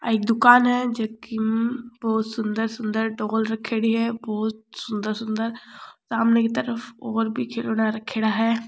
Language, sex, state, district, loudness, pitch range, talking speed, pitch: Rajasthani, female, Rajasthan, Churu, -23 LUFS, 220-230 Hz, 150 wpm, 225 Hz